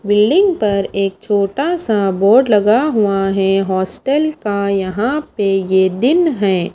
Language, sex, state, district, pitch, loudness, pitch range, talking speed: Hindi, female, Himachal Pradesh, Shimla, 205 Hz, -15 LUFS, 195-260 Hz, 140 wpm